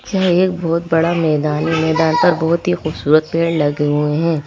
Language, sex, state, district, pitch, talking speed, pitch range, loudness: Hindi, female, Madhya Pradesh, Bhopal, 160 Hz, 200 wpm, 155-170 Hz, -16 LUFS